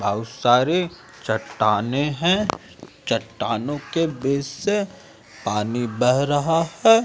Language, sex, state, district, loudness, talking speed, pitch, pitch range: Hindi, female, Madhya Pradesh, Umaria, -22 LUFS, 100 wpm, 140 Hz, 115-165 Hz